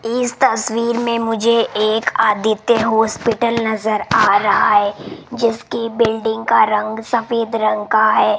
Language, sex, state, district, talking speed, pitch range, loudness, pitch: Hindi, female, Rajasthan, Jaipur, 135 wpm, 220-235 Hz, -16 LUFS, 225 Hz